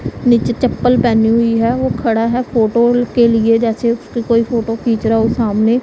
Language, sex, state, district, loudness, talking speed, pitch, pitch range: Hindi, female, Punjab, Pathankot, -14 LUFS, 205 wpm, 230 Hz, 225-240 Hz